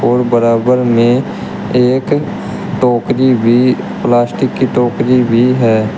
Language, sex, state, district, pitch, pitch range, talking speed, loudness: Hindi, male, Uttar Pradesh, Shamli, 125 Hz, 120-125 Hz, 100 wpm, -12 LUFS